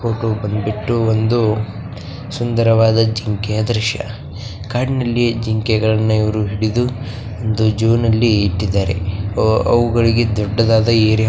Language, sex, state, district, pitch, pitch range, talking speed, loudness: Kannada, male, Karnataka, Bijapur, 110 Hz, 110-115 Hz, 100 wpm, -16 LUFS